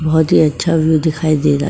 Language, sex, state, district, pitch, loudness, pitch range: Hindi, female, Uttar Pradesh, Etah, 155 Hz, -14 LUFS, 155-160 Hz